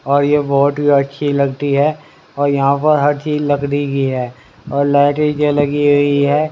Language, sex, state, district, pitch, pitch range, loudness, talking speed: Hindi, male, Haryana, Rohtak, 145 Hz, 140-145 Hz, -15 LUFS, 185 wpm